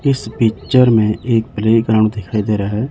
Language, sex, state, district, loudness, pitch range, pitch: Hindi, male, Chandigarh, Chandigarh, -15 LUFS, 105-115 Hz, 110 Hz